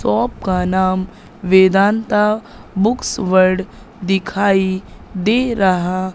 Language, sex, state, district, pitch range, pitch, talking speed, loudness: Hindi, female, Madhya Pradesh, Katni, 185-210 Hz, 190 Hz, 90 wpm, -16 LUFS